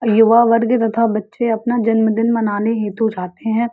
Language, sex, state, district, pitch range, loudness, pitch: Hindi, female, Uttar Pradesh, Varanasi, 220-230 Hz, -16 LUFS, 225 Hz